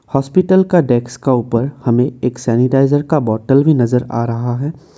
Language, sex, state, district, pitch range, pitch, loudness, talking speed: Hindi, male, Assam, Kamrup Metropolitan, 120-145 Hz, 130 Hz, -15 LUFS, 180 wpm